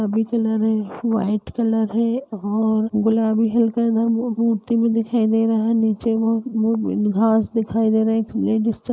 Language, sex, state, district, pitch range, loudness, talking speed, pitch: Hindi, male, Uttar Pradesh, Budaun, 220-230 Hz, -20 LUFS, 200 wpm, 225 Hz